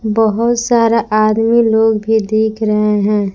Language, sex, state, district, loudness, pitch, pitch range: Hindi, female, Jharkhand, Palamu, -13 LUFS, 220 Hz, 215-230 Hz